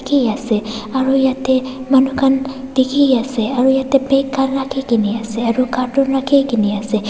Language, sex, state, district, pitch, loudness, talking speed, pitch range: Nagamese, female, Nagaland, Dimapur, 265 Hz, -16 LUFS, 150 wpm, 235-270 Hz